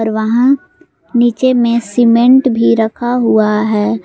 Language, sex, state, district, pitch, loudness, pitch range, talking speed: Hindi, female, Jharkhand, Garhwa, 235 Hz, -12 LUFS, 220-250 Hz, 120 wpm